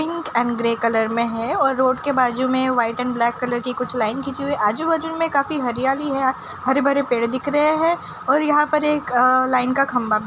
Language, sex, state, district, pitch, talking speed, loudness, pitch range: Hindi, female, Uttarakhand, Tehri Garhwal, 260 Hz, 240 wpm, -20 LUFS, 245-285 Hz